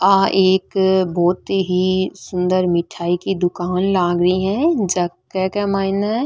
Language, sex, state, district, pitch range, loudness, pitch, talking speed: Marwari, female, Rajasthan, Nagaur, 180-195 Hz, -18 LUFS, 185 Hz, 135 wpm